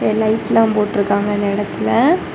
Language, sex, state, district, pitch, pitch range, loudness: Tamil, female, Tamil Nadu, Kanyakumari, 205 Hz, 200-215 Hz, -16 LUFS